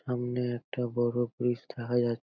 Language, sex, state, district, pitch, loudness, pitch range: Bengali, male, West Bengal, North 24 Parganas, 120 Hz, -31 LUFS, 120-125 Hz